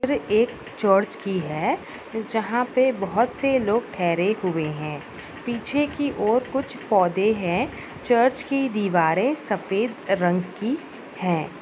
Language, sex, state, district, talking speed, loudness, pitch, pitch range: Hindi, female, Bihar, Madhepura, 130 wpm, -23 LUFS, 215 Hz, 185-255 Hz